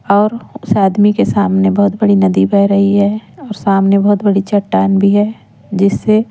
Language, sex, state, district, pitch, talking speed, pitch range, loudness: Hindi, female, Madhya Pradesh, Umaria, 200 Hz, 180 wpm, 195-210 Hz, -12 LUFS